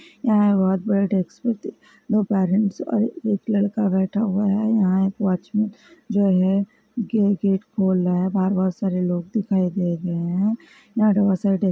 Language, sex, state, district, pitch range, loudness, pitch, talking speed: Hindi, female, Karnataka, Belgaum, 190-215 Hz, -21 LUFS, 200 Hz, 140 wpm